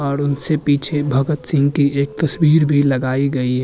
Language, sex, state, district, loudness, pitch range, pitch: Hindi, male, Uttarakhand, Tehri Garhwal, -16 LUFS, 140-150 Hz, 140 Hz